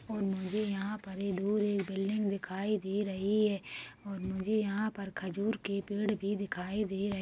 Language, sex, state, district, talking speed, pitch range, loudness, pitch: Hindi, female, Chhattisgarh, Rajnandgaon, 200 wpm, 195-210 Hz, -34 LUFS, 200 Hz